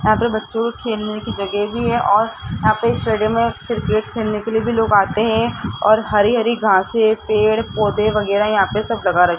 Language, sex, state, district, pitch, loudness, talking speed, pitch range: Hindi, female, Rajasthan, Jaipur, 215 Hz, -17 LUFS, 215 wpm, 210-225 Hz